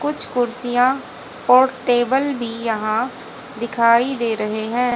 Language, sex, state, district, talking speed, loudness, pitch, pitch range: Hindi, female, Haryana, Jhajjar, 120 wpm, -19 LUFS, 245 Hz, 230-255 Hz